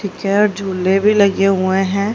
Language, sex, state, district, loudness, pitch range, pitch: Hindi, female, Haryana, Charkhi Dadri, -15 LUFS, 190-205 Hz, 195 Hz